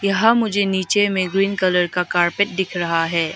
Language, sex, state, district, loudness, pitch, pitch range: Hindi, female, Arunachal Pradesh, Lower Dibang Valley, -18 LUFS, 190 Hz, 175-200 Hz